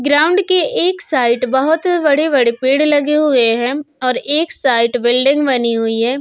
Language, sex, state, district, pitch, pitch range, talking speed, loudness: Hindi, female, Uttar Pradesh, Budaun, 275 Hz, 245-300 Hz, 165 wpm, -14 LUFS